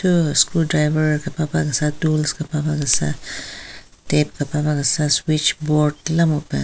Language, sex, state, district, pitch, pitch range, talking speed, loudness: Rengma, female, Nagaland, Kohima, 150 Hz, 150-155 Hz, 125 wpm, -19 LUFS